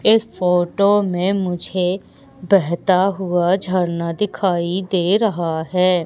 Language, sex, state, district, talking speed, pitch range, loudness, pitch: Hindi, female, Madhya Pradesh, Umaria, 110 wpm, 175-195 Hz, -18 LUFS, 185 Hz